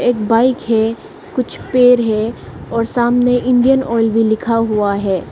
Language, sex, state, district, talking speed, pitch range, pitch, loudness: Hindi, female, Arunachal Pradesh, Lower Dibang Valley, 160 wpm, 220-245 Hz, 230 Hz, -15 LUFS